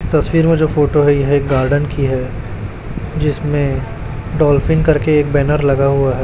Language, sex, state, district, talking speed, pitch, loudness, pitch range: Hindi, male, Chhattisgarh, Raipur, 175 wpm, 145 Hz, -15 LUFS, 130-150 Hz